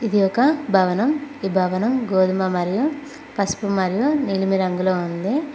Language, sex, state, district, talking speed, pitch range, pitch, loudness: Telugu, female, Telangana, Mahabubabad, 130 wpm, 185-280 Hz, 200 Hz, -20 LUFS